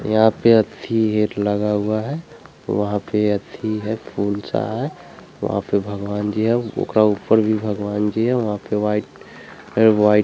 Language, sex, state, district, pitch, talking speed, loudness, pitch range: Hindi, male, Bihar, Vaishali, 105 Hz, 175 wpm, -20 LUFS, 105-110 Hz